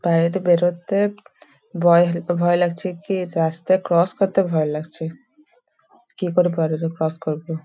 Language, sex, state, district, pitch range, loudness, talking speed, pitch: Bengali, female, West Bengal, Dakshin Dinajpur, 165-185 Hz, -20 LUFS, 110 wpm, 175 Hz